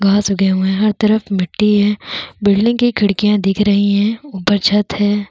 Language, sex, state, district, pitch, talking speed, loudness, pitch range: Hindi, female, Chhattisgarh, Bastar, 205 Hz, 205 wpm, -15 LUFS, 200-210 Hz